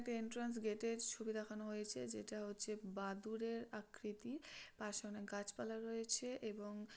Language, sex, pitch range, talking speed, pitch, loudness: Bengali, female, 210-230 Hz, 145 wpm, 215 Hz, -46 LUFS